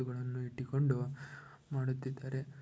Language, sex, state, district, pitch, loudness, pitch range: Kannada, male, Karnataka, Shimoga, 130 Hz, -38 LUFS, 130-135 Hz